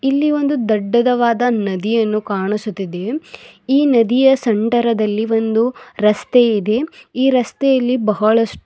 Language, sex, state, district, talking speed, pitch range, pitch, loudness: Kannada, female, Karnataka, Bidar, 95 wpm, 215-255 Hz, 230 Hz, -16 LUFS